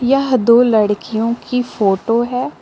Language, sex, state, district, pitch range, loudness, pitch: Hindi, female, Jharkhand, Palamu, 220-250 Hz, -15 LUFS, 235 Hz